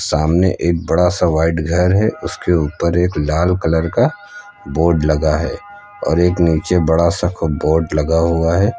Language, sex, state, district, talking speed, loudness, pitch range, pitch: Hindi, male, Uttar Pradesh, Lucknow, 175 wpm, -16 LUFS, 80-90 Hz, 85 Hz